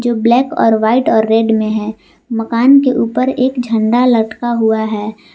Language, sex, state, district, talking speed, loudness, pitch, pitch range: Hindi, female, Jharkhand, Palamu, 180 wpm, -13 LUFS, 225 Hz, 220-245 Hz